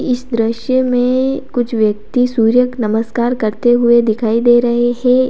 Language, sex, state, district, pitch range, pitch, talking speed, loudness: Hindi, female, Uttar Pradesh, Lalitpur, 225-250 Hz, 240 Hz, 145 wpm, -14 LUFS